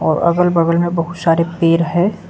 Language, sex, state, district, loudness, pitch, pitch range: Hindi, male, Arunachal Pradesh, Lower Dibang Valley, -15 LUFS, 170 Hz, 165-175 Hz